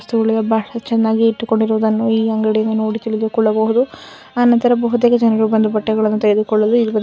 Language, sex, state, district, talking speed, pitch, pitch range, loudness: Kannada, female, Karnataka, Dakshina Kannada, 95 wpm, 220 Hz, 220-230 Hz, -16 LUFS